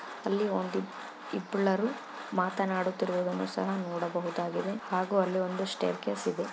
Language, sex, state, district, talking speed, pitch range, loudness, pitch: Kannada, female, Karnataka, Chamarajanagar, 110 wpm, 175-195 Hz, -32 LUFS, 185 Hz